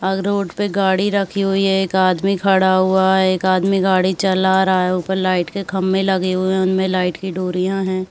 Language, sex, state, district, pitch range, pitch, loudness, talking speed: Hindi, female, Chhattisgarh, Bilaspur, 185-195 Hz, 190 Hz, -17 LUFS, 220 wpm